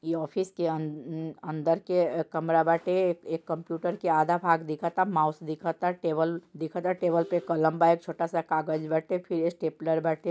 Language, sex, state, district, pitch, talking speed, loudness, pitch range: Bhojpuri, male, Bihar, Saran, 165 Hz, 180 wpm, -28 LUFS, 160-175 Hz